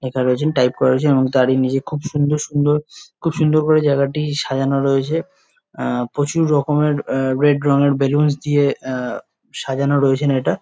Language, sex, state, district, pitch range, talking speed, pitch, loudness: Bengali, male, West Bengal, Jalpaiguri, 135-150 Hz, 165 wpm, 140 Hz, -18 LUFS